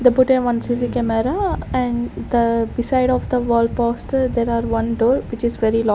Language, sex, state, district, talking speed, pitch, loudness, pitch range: English, female, Chandigarh, Chandigarh, 210 wpm, 240 Hz, -19 LUFS, 230-250 Hz